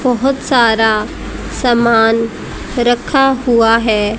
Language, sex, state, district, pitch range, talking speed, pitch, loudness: Hindi, female, Haryana, Rohtak, 225-250 Hz, 85 wpm, 235 Hz, -13 LUFS